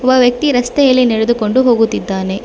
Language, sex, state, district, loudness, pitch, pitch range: Kannada, female, Karnataka, Bangalore, -13 LUFS, 245 Hz, 220-255 Hz